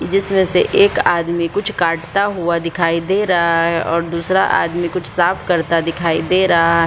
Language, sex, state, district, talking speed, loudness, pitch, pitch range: Hindi, female, Bihar, Supaul, 185 wpm, -16 LUFS, 170 Hz, 170-190 Hz